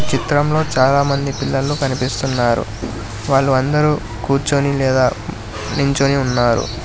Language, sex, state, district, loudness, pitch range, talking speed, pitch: Telugu, male, Telangana, Hyderabad, -17 LUFS, 120-140 Hz, 85 wpm, 135 Hz